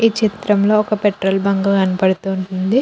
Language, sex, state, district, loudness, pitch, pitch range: Telugu, female, Andhra Pradesh, Krishna, -16 LUFS, 200 Hz, 190-210 Hz